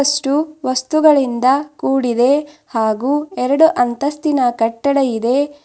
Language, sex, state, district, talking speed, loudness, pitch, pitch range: Kannada, female, Karnataka, Bidar, 85 wpm, -16 LUFS, 275 Hz, 250-290 Hz